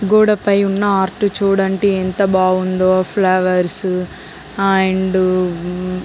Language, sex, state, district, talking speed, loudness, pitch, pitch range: Telugu, female, Andhra Pradesh, Guntur, 80 wpm, -15 LUFS, 190 Hz, 185-195 Hz